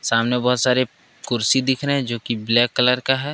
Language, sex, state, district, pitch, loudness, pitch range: Hindi, male, Jharkhand, Ranchi, 125 Hz, -19 LUFS, 120-130 Hz